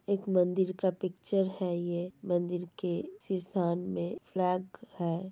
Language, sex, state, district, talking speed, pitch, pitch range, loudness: Hindi, female, Uttar Pradesh, Ghazipur, 145 wpm, 180 Hz, 175-190 Hz, -32 LUFS